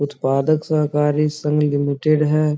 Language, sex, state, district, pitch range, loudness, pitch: Hindi, male, Bihar, Supaul, 145-155 Hz, -18 LUFS, 150 Hz